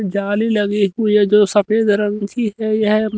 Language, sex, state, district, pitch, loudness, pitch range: Hindi, male, Haryana, Rohtak, 210 Hz, -16 LUFS, 205-215 Hz